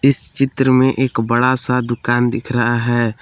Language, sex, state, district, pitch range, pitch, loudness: Hindi, male, Jharkhand, Palamu, 120-130 Hz, 120 Hz, -15 LUFS